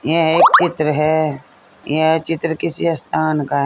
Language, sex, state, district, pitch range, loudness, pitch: Hindi, female, Uttar Pradesh, Saharanpur, 150-165 Hz, -16 LUFS, 155 Hz